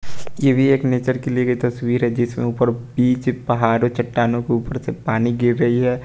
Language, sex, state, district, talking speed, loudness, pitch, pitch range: Hindi, male, Bihar, West Champaran, 210 wpm, -19 LUFS, 120 Hz, 120-125 Hz